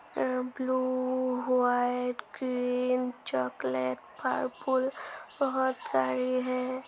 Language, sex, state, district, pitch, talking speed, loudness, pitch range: Hindi, female, Uttar Pradesh, Muzaffarnagar, 255 Hz, 85 wpm, -30 LUFS, 245-255 Hz